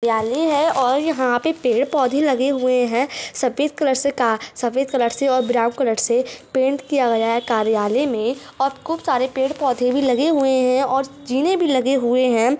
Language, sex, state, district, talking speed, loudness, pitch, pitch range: Hindi, female, Chhattisgarh, Kabirdham, 190 wpm, -19 LUFS, 260 Hz, 245-275 Hz